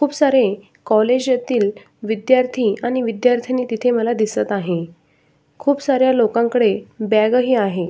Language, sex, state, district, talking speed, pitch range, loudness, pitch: Marathi, female, Maharashtra, Sindhudurg, 130 wpm, 210-250 Hz, -18 LUFS, 230 Hz